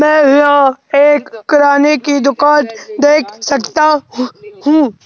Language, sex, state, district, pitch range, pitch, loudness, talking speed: Hindi, male, Madhya Pradesh, Bhopal, 275-300 Hz, 290 Hz, -11 LUFS, 105 wpm